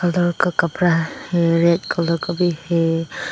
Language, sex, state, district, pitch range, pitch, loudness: Hindi, female, Arunachal Pradesh, Papum Pare, 165-175 Hz, 170 Hz, -19 LUFS